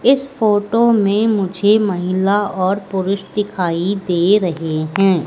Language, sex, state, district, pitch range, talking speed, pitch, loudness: Hindi, female, Madhya Pradesh, Katni, 185-210 Hz, 125 wpm, 195 Hz, -16 LUFS